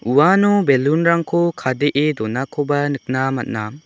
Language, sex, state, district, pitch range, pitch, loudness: Garo, male, Meghalaya, South Garo Hills, 130-165 Hz, 145 Hz, -18 LUFS